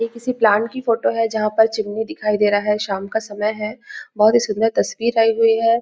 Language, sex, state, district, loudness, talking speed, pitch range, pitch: Hindi, female, Chhattisgarh, Raigarh, -18 LUFS, 245 wpm, 210-230 Hz, 220 Hz